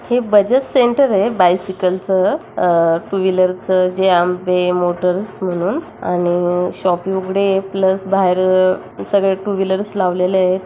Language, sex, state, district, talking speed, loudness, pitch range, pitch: Marathi, female, Maharashtra, Chandrapur, 135 wpm, -16 LUFS, 180-195 Hz, 185 Hz